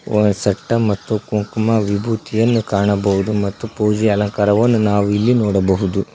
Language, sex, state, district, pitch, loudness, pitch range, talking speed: Kannada, male, Karnataka, Koppal, 105 Hz, -17 LUFS, 100-110 Hz, 115 wpm